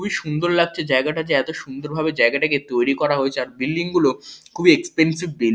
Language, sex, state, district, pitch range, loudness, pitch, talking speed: Bengali, male, West Bengal, Kolkata, 140-170 Hz, -20 LUFS, 155 Hz, 215 wpm